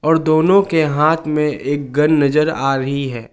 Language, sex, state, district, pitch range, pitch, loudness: Hindi, male, Jharkhand, Garhwa, 140-155 Hz, 150 Hz, -16 LUFS